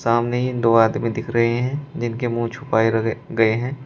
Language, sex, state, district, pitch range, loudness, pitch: Hindi, male, Uttar Pradesh, Shamli, 115-125 Hz, -20 LUFS, 115 Hz